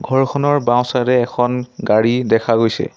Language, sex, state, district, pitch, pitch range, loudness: Assamese, male, Assam, Sonitpur, 125 Hz, 120-130 Hz, -16 LUFS